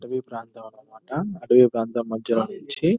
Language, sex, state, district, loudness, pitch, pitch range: Telugu, male, Telangana, Nalgonda, -23 LUFS, 120 Hz, 115-140 Hz